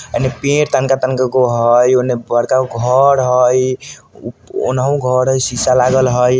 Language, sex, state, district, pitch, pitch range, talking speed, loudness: Bajjika, male, Bihar, Vaishali, 130 Hz, 125-130 Hz, 120 wpm, -13 LUFS